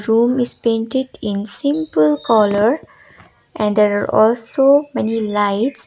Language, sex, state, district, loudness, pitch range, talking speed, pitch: English, female, Sikkim, Gangtok, -16 LUFS, 210-255 Hz, 110 wpm, 225 Hz